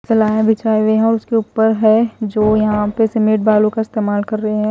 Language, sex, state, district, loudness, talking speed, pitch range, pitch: Hindi, female, Chhattisgarh, Raipur, -15 LUFS, 230 wpm, 215-220 Hz, 215 Hz